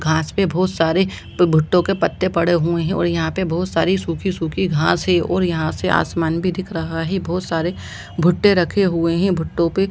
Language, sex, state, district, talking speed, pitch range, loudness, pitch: Hindi, female, Bihar, Lakhisarai, 220 wpm, 165-185 Hz, -19 LUFS, 175 Hz